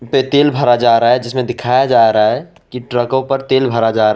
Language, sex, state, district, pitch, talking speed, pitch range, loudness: Hindi, male, Assam, Sonitpur, 120 Hz, 260 wpm, 115-130 Hz, -13 LUFS